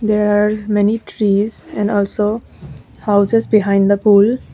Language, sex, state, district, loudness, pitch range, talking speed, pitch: English, female, Assam, Kamrup Metropolitan, -15 LUFS, 205-215 Hz, 130 wpm, 210 Hz